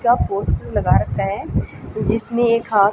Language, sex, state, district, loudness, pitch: Hindi, female, Haryana, Jhajjar, -19 LUFS, 200 Hz